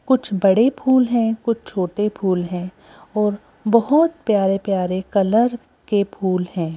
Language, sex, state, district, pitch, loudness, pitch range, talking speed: Hindi, female, Madhya Pradesh, Bhopal, 205 Hz, -19 LUFS, 190-230 Hz, 140 wpm